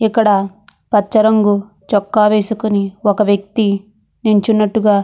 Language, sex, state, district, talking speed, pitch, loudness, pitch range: Telugu, female, Andhra Pradesh, Anantapur, 105 wpm, 210 Hz, -15 LUFS, 200-215 Hz